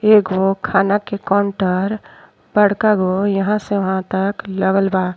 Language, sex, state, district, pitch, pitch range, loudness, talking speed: Bhojpuri, female, Uttar Pradesh, Ghazipur, 195 Hz, 190-205 Hz, -17 LUFS, 140 wpm